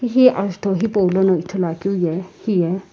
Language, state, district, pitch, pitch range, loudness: Sumi, Nagaland, Kohima, 190 Hz, 180-200 Hz, -19 LUFS